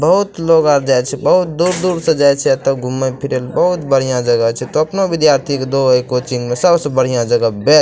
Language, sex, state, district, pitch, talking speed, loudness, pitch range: Maithili, male, Bihar, Madhepura, 135 Hz, 240 wpm, -14 LUFS, 125-160 Hz